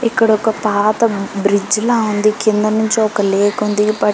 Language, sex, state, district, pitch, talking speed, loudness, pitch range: Telugu, female, Telangana, Karimnagar, 215 Hz, 130 wpm, -15 LUFS, 205-220 Hz